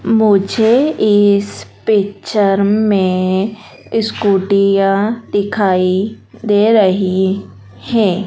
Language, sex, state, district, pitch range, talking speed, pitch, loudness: Hindi, female, Madhya Pradesh, Dhar, 195-215 Hz, 65 wpm, 200 Hz, -14 LUFS